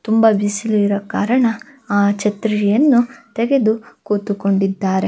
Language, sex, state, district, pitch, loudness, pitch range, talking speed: Kannada, female, Karnataka, Belgaum, 215 Hz, -17 LUFS, 205-230 Hz, 85 wpm